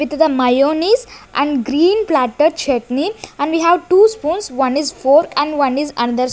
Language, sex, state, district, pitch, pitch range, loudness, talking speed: English, female, Chandigarh, Chandigarh, 295 Hz, 270-335 Hz, -15 LUFS, 180 wpm